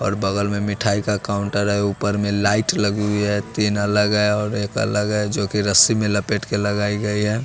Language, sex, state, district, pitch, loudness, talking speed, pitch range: Hindi, male, Bihar, West Champaran, 105 Hz, -20 LUFS, 235 wpm, 100-105 Hz